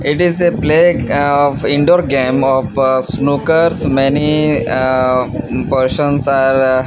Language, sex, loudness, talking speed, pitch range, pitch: English, male, -13 LUFS, 115 wpm, 130-150 Hz, 140 Hz